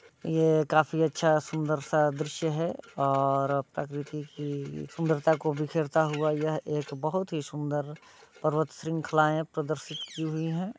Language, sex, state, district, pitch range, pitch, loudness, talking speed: Hindi, male, Bihar, Muzaffarpur, 150-160 Hz, 155 Hz, -29 LUFS, 135 wpm